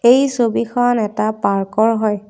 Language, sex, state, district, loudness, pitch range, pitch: Assamese, female, Assam, Kamrup Metropolitan, -16 LUFS, 210-240 Hz, 220 Hz